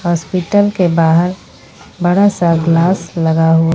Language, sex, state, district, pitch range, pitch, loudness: Hindi, female, Jharkhand, Ranchi, 165-185 Hz, 170 Hz, -13 LUFS